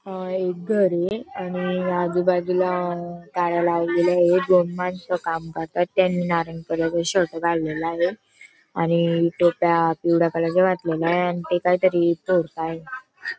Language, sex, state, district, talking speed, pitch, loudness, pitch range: Marathi, female, Maharashtra, Dhule, 125 wpm, 175 Hz, -22 LUFS, 170-180 Hz